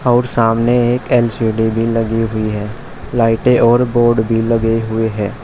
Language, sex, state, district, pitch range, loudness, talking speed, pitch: Hindi, male, Uttar Pradesh, Shamli, 110-120 Hz, -14 LUFS, 155 wpm, 115 Hz